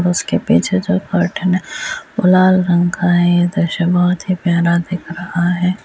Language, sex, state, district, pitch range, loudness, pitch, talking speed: Hindi, female, Bihar, Muzaffarpur, 175-185 Hz, -15 LUFS, 180 Hz, 195 wpm